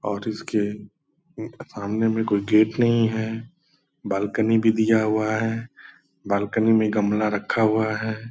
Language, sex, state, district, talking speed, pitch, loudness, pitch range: Hindi, male, Bihar, Purnia, 135 wpm, 110 Hz, -22 LUFS, 105-115 Hz